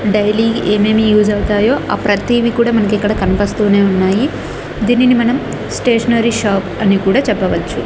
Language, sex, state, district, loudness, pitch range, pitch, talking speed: Telugu, female, Andhra Pradesh, Annamaya, -13 LUFS, 205-235 Hz, 210 Hz, 130 wpm